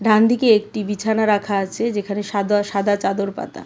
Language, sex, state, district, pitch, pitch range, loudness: Bengali, female, Tripura, West Tripura, 205 Hz, 200-220 Hz, -19 LUFS